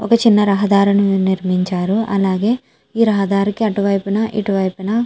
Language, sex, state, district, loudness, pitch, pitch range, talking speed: Telugu, female, Andhra Pradesh, Chittoor, -16 LUFS, 200 Hz, 195-215 Hz, 130 wpm